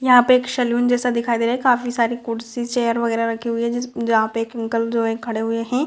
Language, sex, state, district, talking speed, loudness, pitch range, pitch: Hindi, female, Bihar, Gopalganj, 275 wpm, -20 LUFS, 230-245 Hz, 235 Hz